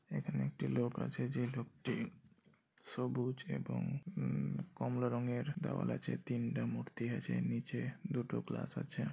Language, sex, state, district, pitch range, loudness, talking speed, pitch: Bengali, male, West Bengal, Malda, 115-125 Hz, -40 LUFS, 130 wpm, 120 Hz